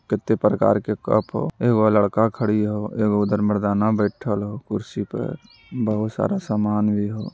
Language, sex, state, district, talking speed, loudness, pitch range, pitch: Magahi, male, Bihar, Jamui, 205 wpm, -22 LUFS, 105-110 Hz, 105 Hz